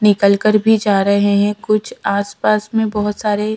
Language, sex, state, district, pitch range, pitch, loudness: Hindi, female, Bihar, Patna, 200-215 Hz, 210 Hz, -15 LUFS